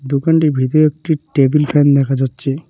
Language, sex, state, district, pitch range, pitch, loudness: Bengali, male, West Bengal, Cooch Behar, 135-155 Hz, 145 Hz, -14 LUFS